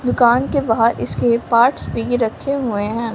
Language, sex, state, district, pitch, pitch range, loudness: Hindi, male, Punjab, Fazilka, 235 Hz, 230-250 Hz, -17 LUFS